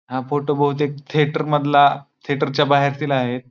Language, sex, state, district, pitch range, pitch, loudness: Marathi, male, Maharashtra, Pune, 140-150 Hz, 145 Hz, -19 LUFS